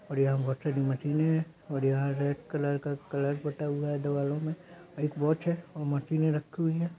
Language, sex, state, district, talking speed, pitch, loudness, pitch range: Hindi, male, Bihar, Darbhanga, 215 wpm, 145 Hz, -31 LUFS, 140-160 Hz